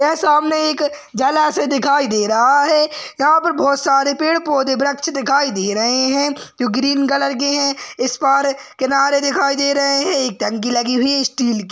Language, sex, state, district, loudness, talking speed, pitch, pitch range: Hindi, male, Maharashtra, Sindhudurg, -16 LUFS, 200 wpm, 280 Hz, 260-290 Hz